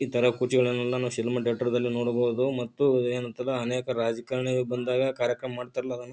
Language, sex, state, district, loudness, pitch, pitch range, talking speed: Kannada, male, Karnataka, Bijapur, -27 LUFS, 125 Hz, 120-125 Hz, 155 wpm